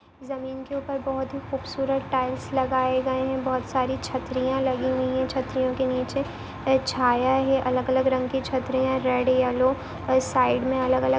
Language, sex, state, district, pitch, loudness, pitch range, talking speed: Hindi, female, Maharashtra, Pune, 260 Hz, -25 LUFS, 255-265 Hz, 170 wpm